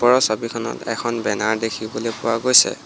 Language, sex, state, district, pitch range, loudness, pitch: Assamese, male, Assam, Hailakandi, 110-120 Hz, -20 LUFS, 115 Hz